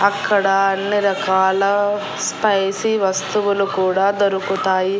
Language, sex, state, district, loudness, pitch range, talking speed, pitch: Telugu, female, Andhra Pradesh, Annamaya, -18 LUFS, 190-205 Hz, 85 wpm, 195 Hz